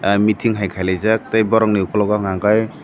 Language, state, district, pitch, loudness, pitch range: Kokborok, Tripura, Dhalai, 105 Hz, -17 LUFS, 100-110 Hz